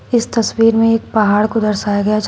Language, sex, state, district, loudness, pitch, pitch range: Hindi, female, Uttar Pradesh, Shamli, -14 LUFS, 220 Hz, 210-225 Hz